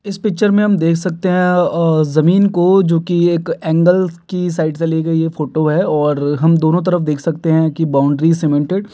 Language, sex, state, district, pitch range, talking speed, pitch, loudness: Hindi, male, Uttar Pradesh, Hamirpur, 160-180 Hz, 215 wpm, 165 Hz, -14 LUFS